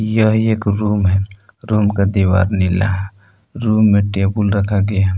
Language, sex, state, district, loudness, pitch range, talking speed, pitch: Hindi, male, Jharkhand, Palamu, -16 LUFS, 95-105 Hz, 160 wpm, 100 Hz